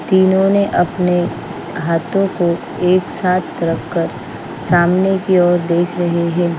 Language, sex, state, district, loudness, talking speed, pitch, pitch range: Hindi, female, Bihar, Patna, -16 LUFS, 125 wpm, 175 Hz, 170-190 Hz